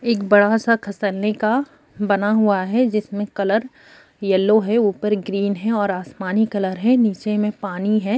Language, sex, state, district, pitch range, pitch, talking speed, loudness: Hindi, female, Bihar, Sitamarhi, 200-220 Hz, 210 Hz, 160 wpm, -19 LUFS